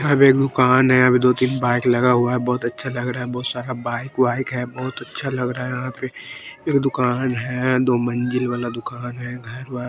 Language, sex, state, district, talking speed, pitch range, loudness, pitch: Hindi, male, Haryana, Rohtak, 230 wpm, 125-130 Hz, -20 LUFS, 125 Hz